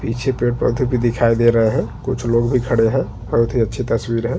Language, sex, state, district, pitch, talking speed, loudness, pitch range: Hindi, male, Chhattisgarh, Jashpur, 120 Hz, 245 wpm, -18 LUFS, 115-125 Hz